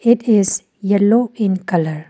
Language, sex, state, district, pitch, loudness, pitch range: English, female, Arunachal Pradesh, Lower Dibang Valley, 205 Hz, -16 LUFS, 190-225 Hz